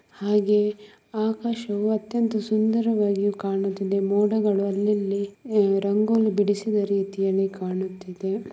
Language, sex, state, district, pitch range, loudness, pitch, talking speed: Kannada, female, Karnataka, Mysore, 195-215 Hz, -24 LUFS, 205 Hz, 75 wpm